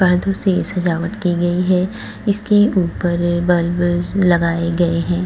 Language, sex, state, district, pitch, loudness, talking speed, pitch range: Hindi, female, Uttar Pradesh, Etah, 175 Hz, -17 LUFS, 150 wpm, 175-185 Hz